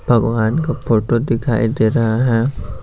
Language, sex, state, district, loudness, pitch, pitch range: Hindi, male, Bihar, Patna, -17 LUFS, 115 Hz, 115-125 Hz